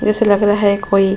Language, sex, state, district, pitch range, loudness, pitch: Hindi, female, Goa, North and South Goa, 200-210 Hz, -14 LUFS, 205 Hz